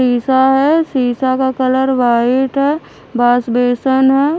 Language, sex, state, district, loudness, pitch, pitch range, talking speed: Hindi, female, Haryana, Charkhi Dadri, -13 LUFS, 260 Hz, 245-270 Hz, 135 wpm